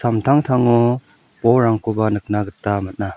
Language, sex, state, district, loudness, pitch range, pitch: Garo, male, Meghalaya, South Garo Hills, -18 LUFS, 105-120 Hz, 110 Hz